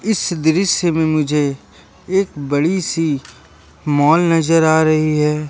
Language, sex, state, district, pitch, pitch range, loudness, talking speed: Hindi, male, Jharkhand, Ranchi, 155 Hz, 145-165 Hz, -16 LUFS, 130 wpm